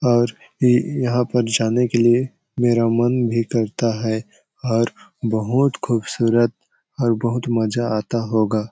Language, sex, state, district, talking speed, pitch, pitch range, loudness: Hindi, male, Chhattisgarh, Balrampur, 140 wpm, 115 Hz, 115-125 Hz, -20 LUFS